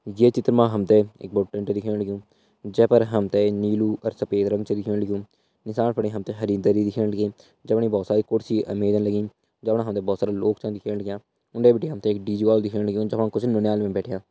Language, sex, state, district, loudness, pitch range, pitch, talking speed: Hindi, male, Uttarakhand, Tehri Garhwal, -23 LUFS, 100-110 Hz, 105 Hz, 245 wpm